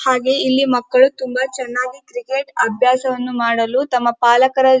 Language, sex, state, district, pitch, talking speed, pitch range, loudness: Kannada, female, Karnataka, Dharwad, 255 Hz, 135 wpm, 245-265 Hz, -16 LUFS